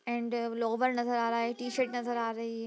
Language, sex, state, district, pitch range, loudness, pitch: Hindi, female, Bihar, Darbhanga, 230-240 Hz, -32 LUFS, 235 Hz